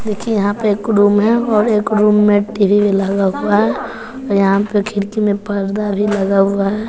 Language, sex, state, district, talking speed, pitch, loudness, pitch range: Hindi, female, Bihar, West Champaran, 200 wpm, 205 Hz, -15 LUFS, 200-215 Hz